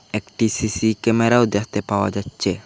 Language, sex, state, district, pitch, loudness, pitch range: Bengali, male, Assam, Hailakandi, 110 Hz, -20 LUFS, 100-115 Hz